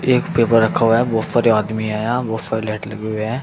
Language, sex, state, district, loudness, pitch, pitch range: Hindi, male, Uttar Pradesh, Shamli, -18 LUFS, 110 Hz, 110-120 Hz